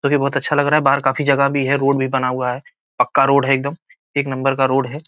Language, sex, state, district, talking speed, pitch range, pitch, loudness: Hindi, male, Bihar, Gopalganj, 320 wpm, 135-140 Hz, 140 Hz, -17 LUFS